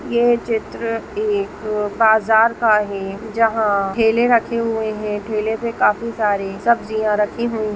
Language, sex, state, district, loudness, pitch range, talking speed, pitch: Hindi, male, West Bengal, Purulia, -18 LUFS, 210-230 Hz, 140 wpm, 220 Hz